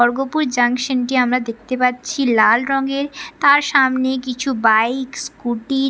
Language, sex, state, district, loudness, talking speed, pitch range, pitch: Bengali, female, West Bengal, Paschim Medinipur, -17 LUFS, 140 wpm, 240-270 Hz, 255 Hz